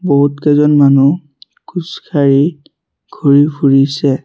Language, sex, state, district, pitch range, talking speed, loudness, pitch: Assamese, male, Assam, Sonitpur, 140-150 Hz, 70 wpm, -12 LUFS, 145 Hz